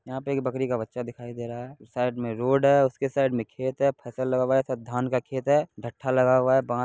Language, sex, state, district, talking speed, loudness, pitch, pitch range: Hindi, male, Bihar, Purnia, 290 wpm, -26 LUFS, 130 Hz, 120-135 Hz